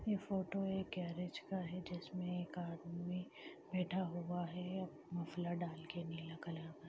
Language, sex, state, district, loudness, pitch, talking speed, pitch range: Hindi, female, Chhattisgarh, Raigarh, -44 LUFS, 175 Hz, 155 wpm, 170-180 Hz